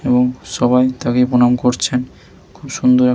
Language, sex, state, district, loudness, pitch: Bengali, male, West Bengal, Malda, -15 LUFS, 125 Hz